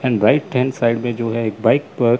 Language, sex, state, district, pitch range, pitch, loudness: Hindi, male, Chandigarh, Chandigarh, 115-130 Hz, 120 Hz, -18 LUFS